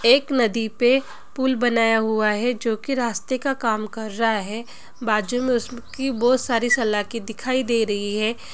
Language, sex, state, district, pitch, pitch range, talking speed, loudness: Hindi, female, Bihar, Gopalganj, 230 Hz, 220-250 Hz, 185 wpm, -22 LUFS